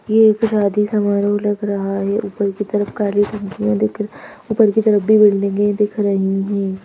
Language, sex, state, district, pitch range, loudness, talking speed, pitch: Hindi, female, Madhya Pradesh, Bhopal, 200-210 Hz, -17 LUFS, 185 wpm, 205 Hz